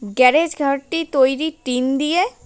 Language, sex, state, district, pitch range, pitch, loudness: Bengali, female, West Bengal, Cooch Behar, 260-315 Hz, 280 Hz, -18 LUFS